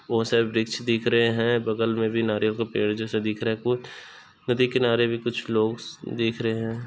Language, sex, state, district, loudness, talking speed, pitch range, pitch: Hindi, male, Chhattisgarh, Raigarh, -24 LUFS, 220 wpm, 110-120 Hz, 115 Hz